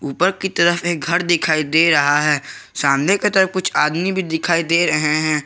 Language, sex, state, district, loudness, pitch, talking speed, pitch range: Hindi, male, Jharkhand, Garhwa, -17 LUFS, 165 Hz, 210 wpm, 150-175 Hz